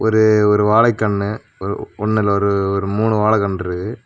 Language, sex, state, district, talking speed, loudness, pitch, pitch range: Tamil, male, Tamil Nadu, Kanyakumari, 150 wpm, -17 LUFS, 105 Hz, 100-110 Hz